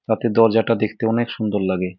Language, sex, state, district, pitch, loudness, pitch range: Bengali, male, West Bengal, Jhargram, 110 Hz, -19 LUFS, 105-115 Hz